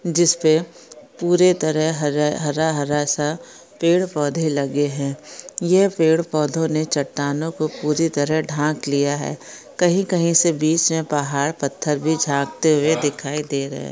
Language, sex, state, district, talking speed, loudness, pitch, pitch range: Hindi, female, Maharashtra, Pune, 155 wpm, -20 LUFS, 155 Hz, 145-165 Hz